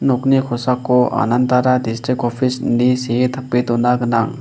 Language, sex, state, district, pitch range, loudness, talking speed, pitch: Garo, male, Meghalaya, West Garo Hills, 120-130 Hz, -17 LUFS, 135 wpm, 125 Hz